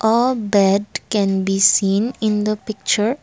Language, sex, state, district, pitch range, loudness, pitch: English, female, Assam, Kamrup Metropolitan, 195-220 Hz, -18 LUFS, 210 Hz